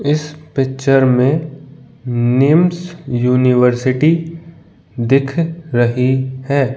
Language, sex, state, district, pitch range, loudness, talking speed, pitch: Hindi, male, Rajasthan, Jaipur, 125-155 Hz, -15 LUFS, 70 wpm, 135 Hz